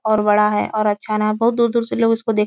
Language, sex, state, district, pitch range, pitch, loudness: Hindi, female, Uttar Pradesh, Etah, 210-230 Hz, 215 Hz, -18 LUFS